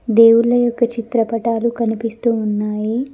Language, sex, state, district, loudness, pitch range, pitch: Telugu, female, Telangana, Mahabubabad, -17 LUFS, 225-235 Hz, 230 Hz